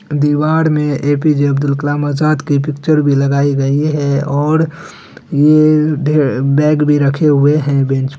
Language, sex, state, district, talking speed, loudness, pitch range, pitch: Hindi, male, Bihar, Araria, 160 wpm, -13 LUFS, 140-150 Hz, 145 Hz